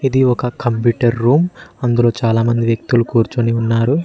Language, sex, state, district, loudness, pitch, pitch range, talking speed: Telugu, male, Telangana, Mahabubabad, -16 LUFS, 120 Hz, 115-125 Hz, 150 wpm